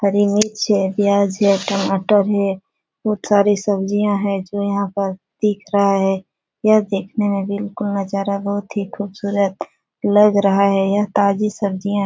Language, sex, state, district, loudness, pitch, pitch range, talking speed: Hindi, female, Bihar, Supaul, -18 LUFS, 200 Hz, 195-205 Hz, 155 wpm